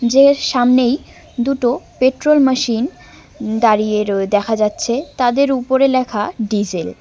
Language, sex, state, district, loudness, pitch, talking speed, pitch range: Bengali, male, West Bengal, Cooch Behar, -16 LUFS, 245 Hz, 120 wpm, 215-265 Hz